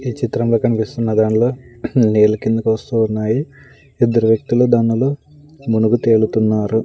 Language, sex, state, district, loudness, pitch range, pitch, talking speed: Telugu, male, Andhra Pradesh, Sri Satya Sai, -16 LUFS, 110-125 Hz, 115 Hz, 115 wpm